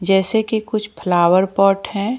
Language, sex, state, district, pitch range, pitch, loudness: Hindi, female, Jharkhand, Ranchi, 190-215 Hz, 195 Hz, -17 LUFS